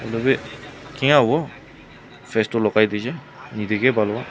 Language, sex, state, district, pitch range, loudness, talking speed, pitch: Nagamese, male, Nagaland, Kohima, 110-140 Hz, -20 LUFS, 155 wpm, 115 Hz